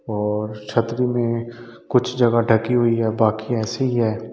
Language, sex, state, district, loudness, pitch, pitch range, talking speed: Hindi, male, Delhi, New Delhi, -20 LUFS, 115 Hz, 110-120 Hz, 165 wpm